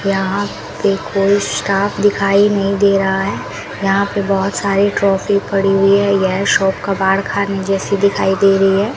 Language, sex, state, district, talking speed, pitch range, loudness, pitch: Hindi, female, Rajasthan, Bikaner, 175 wpm, 195-200 Hz, -15 LUFS, 195 Hz